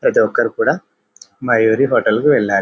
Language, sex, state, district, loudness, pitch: Telugu, male, Telangana, Karimnagar, -15 LUFS, 110 Hz